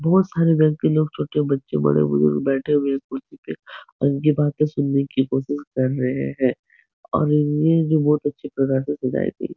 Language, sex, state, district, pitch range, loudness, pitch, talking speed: Hindi, male, Uttar Pradesh, Etah, 135-150 Hz, -20 LUFS, 140 Hz, 180 wpm